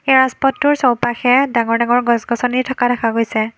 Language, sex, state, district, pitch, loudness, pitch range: Assamese, female, Assam, Kamrup Metropolitan, 245 Hz, -15 LUFS, 235-260 Hz